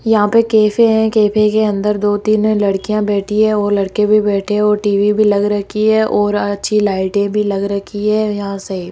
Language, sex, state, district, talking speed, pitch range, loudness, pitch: Hindi, female, Rajasthan, Jaipur, 220 wpm, 200-215 Hz, -14 LUFS, 210 Hz